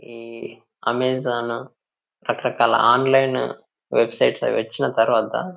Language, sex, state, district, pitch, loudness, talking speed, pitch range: Telugu, male, Telangana, Nalgonda, 120 Hz, -20 LUFS, 85 wpm, 120-130 Hz